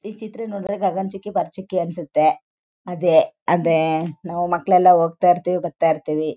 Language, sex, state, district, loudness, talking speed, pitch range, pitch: Kannada, female, Karnataka, Chamarajanagar, -19 LUFS, 160 wpm, 165-195 Hz, 180 Hz